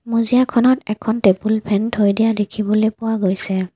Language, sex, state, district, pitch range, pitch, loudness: Assamese, female, Assam, Kamrup Metropolitan, 205-230 Hz, 220 Hz, -17 LUFS